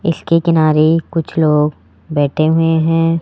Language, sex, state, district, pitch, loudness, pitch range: Hindi, male, Rajasthan, Jaipur, 160 Hz, -14 LUFS, 155-165 Hz